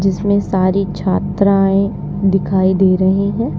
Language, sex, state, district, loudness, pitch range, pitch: Hindi, female, Uttar Pradesh, Lalitpur, -15 LUFS, 185-195 Hz, 190 Hz